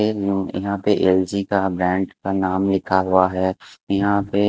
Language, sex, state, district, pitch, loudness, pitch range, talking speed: Hindi, male, Himachal Pradesh, Shimla, 95 Hz, -20 LUFS, 95-100 Hz, 175 wpm